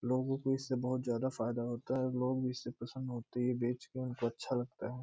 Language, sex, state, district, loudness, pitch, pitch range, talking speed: Hindi, male, Bihar, Gopalganj, -37 LUFS, 125 Hz, 120-130 Hz, 240 wpm